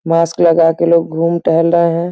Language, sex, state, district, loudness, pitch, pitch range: Hindi, female, Uttar Pradesh, Gorakhpur, -12 LUFS, 165 Hz, 165-170 Hz